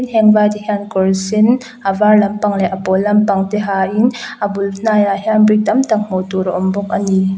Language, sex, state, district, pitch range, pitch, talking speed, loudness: Mizo, female, Mizoram, Aizawl, 195-215 Hz, 205 Hz, 235 wpm, -14 LUFS